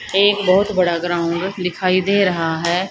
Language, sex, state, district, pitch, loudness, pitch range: Hindi, female, Haryana, Charkhi Dadri, 185 Hz, -17 LUFS, 175-195 Hz